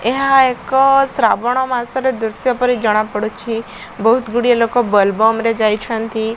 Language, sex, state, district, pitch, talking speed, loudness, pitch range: Odia, female, Odisha, Malkangiri, 235 Hz, 120 wpm, -15 LUFS, 220-255 Hz